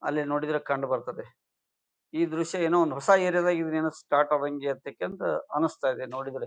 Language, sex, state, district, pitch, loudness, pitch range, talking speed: Kannada, male, Karnataka, Bijapur, 150 Hz, -27 LUFS, 140-165 Hz, 160 wpm